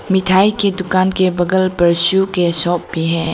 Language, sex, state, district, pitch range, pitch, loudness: Hindi, female, Arunachal Pradesh, Lower Dibang Valley, 175-190 Hz, 185 Hz, -15 LUFS